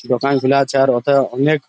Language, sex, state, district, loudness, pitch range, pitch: Bengali, male, West Bengal, Malda, -15 LUFS, 130-140 Hz, 135 Hz